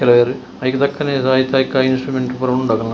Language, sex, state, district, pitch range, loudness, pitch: Tulu, male, Karnataka, Dakshina Kannada, 125-135 Hz, -17 LUFS, 130 Hz